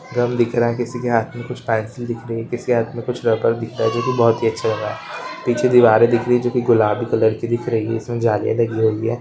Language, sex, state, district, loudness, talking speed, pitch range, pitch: Hindi, male, Rajasthan, Nagaur, -19 LUFS, 305 wpm, 115-120 Hz, 120 Hz